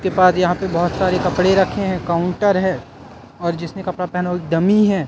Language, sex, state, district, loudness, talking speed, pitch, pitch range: Hindi, male, Madhya Pradesh, Katni, -18 LUFS, 225 wpm, 180 Hz, 175-190 Hz